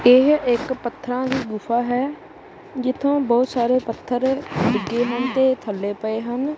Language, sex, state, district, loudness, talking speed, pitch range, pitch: Punjabi, male, Punjab, Kapurthala, -21 LUFS, 145 wpm, 235-265 Hz, 250 Hz